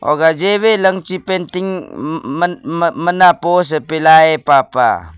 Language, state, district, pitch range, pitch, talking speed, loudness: Nyishi, Arunachal Pradesh, Papum Pare, 160-185 Hz, 175 Hz, 95 wpm, -13 LUFS